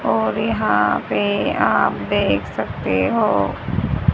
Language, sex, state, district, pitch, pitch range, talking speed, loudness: Hindi, female, Haryana, Rohtak, 105 Hz, 100-110 Hz, 100 wpm, -19 LUFS